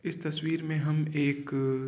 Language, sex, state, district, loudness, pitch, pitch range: Hindi, male, Uttar Pradesh, Varanasi, -30 LUFS, 150 Hz, 140-160 Hz